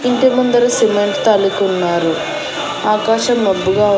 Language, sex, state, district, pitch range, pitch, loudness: Telugu, female, Andhra Pradesh, Annamaya, 195-245 Hz, 210 Hz, -14 LUFS